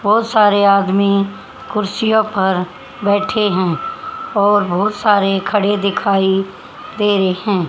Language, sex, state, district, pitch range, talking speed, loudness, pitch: Hindi, female, Haryana, Charkhi Dadri, 195-215 Hz, 115 wpm, -15 LUFS, 205 Hz